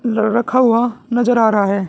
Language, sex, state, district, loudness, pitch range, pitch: Hindi, male, Haryana, Jhajjar, -15 LUFS, 220-245 Hz, 235 Hz